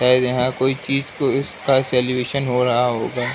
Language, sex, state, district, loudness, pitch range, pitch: Hindi, male, Uttar Pradesh, Ghazipur, -19 LUFS, 125-135 Hz, 125 Hz